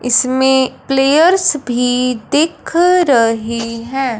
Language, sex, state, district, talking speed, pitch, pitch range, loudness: Hindi, male, Punjab, Fazilka, 85 wpm, 260 Hz, 245-295 Hz, -13 LUFS